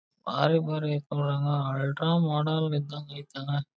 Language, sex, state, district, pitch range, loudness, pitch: Kannada, male, Karnataka, Belgaum, 145-155 Hz, -28 LUFS, 145 Hz